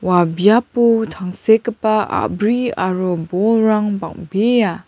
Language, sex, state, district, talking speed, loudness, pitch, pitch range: Garo, female, Meghalaya, West Garo Hills, 85 wpm, -16 LUFS, 210 Hz, 185-225 Hz